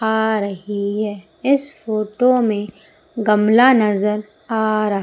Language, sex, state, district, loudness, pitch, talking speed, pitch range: Hindi, female, Madhya Pradesh, Umaria, -18 LUFS, 215 Hz, 120 wpm, 210-225 Hz